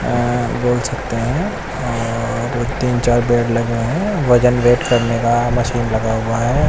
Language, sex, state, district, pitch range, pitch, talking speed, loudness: Hindi, male, Odisha, Nuapada, 115-125 Hz, 120 Hz, 160 wpm, -17 LUFS